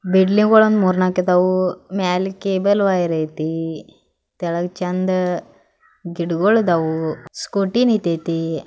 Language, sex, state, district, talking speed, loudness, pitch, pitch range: Kannada, female, Karnataka, Belgaum, 105 wpm, -18 LUFS, 180 Hz, 170-195 Hz